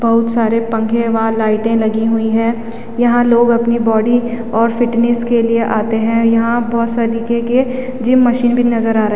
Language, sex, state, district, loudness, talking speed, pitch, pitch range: Hindi, female, Uttarakhand, Tehri Garhwal, -14 LUFS, 190 wpm, 230 Hz, 225-235 Hz